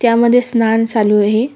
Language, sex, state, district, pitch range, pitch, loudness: Marathi, female, Maharashtra, Solapur, 220-235 Hz, 230 Hz, -13 LUFS